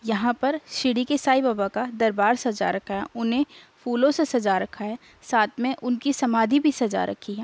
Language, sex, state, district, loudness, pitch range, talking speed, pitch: Hindi, female, Uttar Pradesh, Budaun, -24 LUFS, 220-265 Hz, 200 wpm, 240 Hz